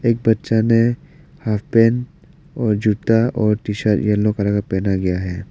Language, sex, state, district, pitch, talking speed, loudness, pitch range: Hindi, male, Arunachal Pradesh, Papum Pare, 110 Hz, 175 wpm, -18 LUFS, 105-120 Hz